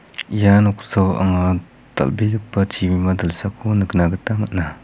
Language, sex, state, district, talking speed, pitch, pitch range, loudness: Garo, male, Meghalaya, West Garo Hills, 110 wpm, 95 Hz, 90-105 Hz, -19 LUFS